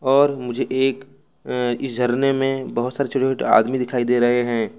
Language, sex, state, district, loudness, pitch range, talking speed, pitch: Hindi, male, Jharkhand, Ranchi, -20 LUFS, 120-135 Hz, 165 wpm, 130 Hz